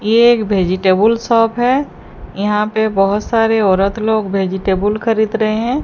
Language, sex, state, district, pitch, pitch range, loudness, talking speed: Hindi, female, Odisha, Sambalpur, 215 Hz, 195-225 Hz, -14 LUFS, 155 wpm